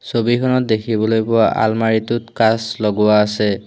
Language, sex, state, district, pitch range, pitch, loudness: Assamese, male, Assam, Hailakandi, 110-115 Hz, 110 Hz, -16 LUFS